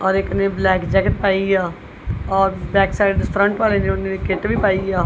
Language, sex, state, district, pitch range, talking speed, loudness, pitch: Punjabi, female, Punjab, Kapurthala, 185-195 Hz, 235 wpm, -18 LUFS, 195 Hz